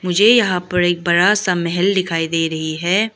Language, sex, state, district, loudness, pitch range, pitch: Hindi, female, Arunachal Pradesh, Lower Dibang Valley, -16 LUFS, 170-195 Hz, 180 Hz